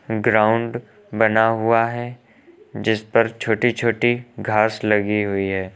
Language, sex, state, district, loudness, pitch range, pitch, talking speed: Hindi, male, Uttar Pradesh, Lucknow, -19 LUFS, 105-120 Hz, 115 Hz, 125 wpm